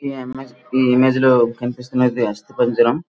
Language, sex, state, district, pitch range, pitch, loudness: Telugu, male, Andhra Pradesh, Srikakulam, 120-130 Hz, 125 Hz, -17 LUFS